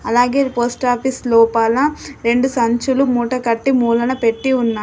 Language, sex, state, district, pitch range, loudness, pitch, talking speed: Telugu, female, Telangana, Adilabad, 230-260 Hz, -16 LUFS, 245 Hz, 110 wpm